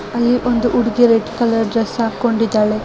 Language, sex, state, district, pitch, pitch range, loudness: Kannada, female, Karnataka, Raichur, 230 Hz, 225-240 Hz, -16 LUFS